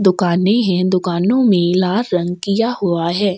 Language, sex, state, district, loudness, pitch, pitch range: Hindi, female, Chhattisgarh, Sukma, -16 LUFS, 185 Hz, 180-205 Hz